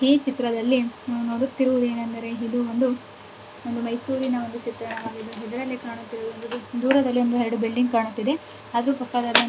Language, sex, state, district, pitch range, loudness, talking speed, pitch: Kannada, female, Karnataka, Mysore, 230-255 Hz, -25 LUFS, 90 wpm, 240 Hz